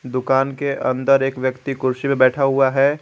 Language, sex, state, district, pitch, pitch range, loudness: Hindi, male, Jharkhand, Garhwa, 135 Hz, 130-135 Hz, -18 LUFS